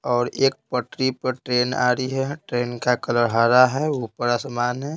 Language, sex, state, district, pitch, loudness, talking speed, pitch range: Hindi, male, Bihar, Patna, 125 Hz, -22 LUFS, 195 wpm, 120-135 Hz